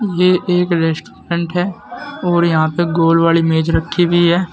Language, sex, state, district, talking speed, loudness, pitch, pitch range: Hindi, male, Uttar Pradesh, Saharanpur, 170 wpm, -15 LUFS, 170 Hz, 165-180 Hz